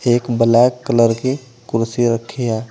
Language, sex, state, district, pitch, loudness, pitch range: Hindi, male, Uttar Pradesh, Saharanpur, 120 Hz, -16 LUFS, 115-125 Hz